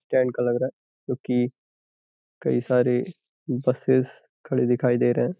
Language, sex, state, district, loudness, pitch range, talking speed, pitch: Hindi, male, Uttar Pradesh, Gorakhpur, -24 LUFS, 125-130 Hz, 155 wpm, 125 Hz